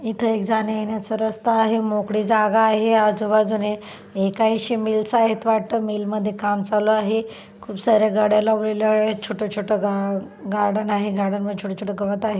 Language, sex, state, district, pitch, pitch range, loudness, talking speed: Marathi, female, Maharashtra, Chandrapur, 215 Hz, 205-220 Hz, -21 LUFS, 160 wpm